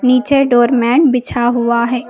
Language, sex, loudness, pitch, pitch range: Hindi, female, -13 LUFS, 245 Hz, 240-255 Hz